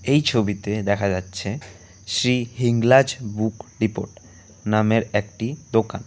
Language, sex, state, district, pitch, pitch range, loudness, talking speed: Bengali, male, West Bengal, Alipurduar, 110 Hz, 100-120 Hz, -22 LUFS, 110 wpm